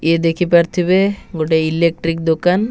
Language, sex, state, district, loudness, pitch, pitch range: Odia, male, Odisha, Nuapada, -16 LUFS, 165 Hz, 165-180 Hz